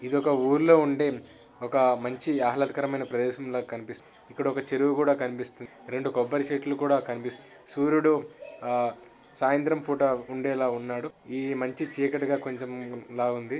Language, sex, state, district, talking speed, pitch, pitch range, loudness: Telugu, male, Telangana, Nalgonda, 135 wpm, 135 Hz, 125-140 Hz, -27 LUFS